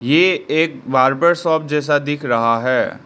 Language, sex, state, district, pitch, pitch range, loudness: Hindi, male, Arunachal Pradesh, Lower Dibang Valley, 145 Hz, 130-160 Hz, -16 LUFS